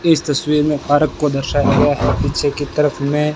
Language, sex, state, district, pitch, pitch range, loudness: Hindi, male, Rajasthan, Bikaner, 145 Hz, 140-150 Hz, -16 LUFS